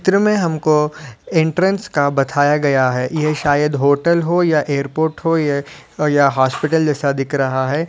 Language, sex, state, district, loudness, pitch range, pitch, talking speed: Hindi, male, Uttar Pradesh, Ghazipur, -16 LUFS, 140-160 Hz, 150 Hz, 165 wpm